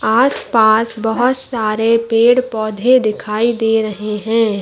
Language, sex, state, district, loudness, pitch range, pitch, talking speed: Hindi, female, Chhattisgarh, Bastar, -15 LUFS, 215-235 Hz, 225 Hz, 145 wpm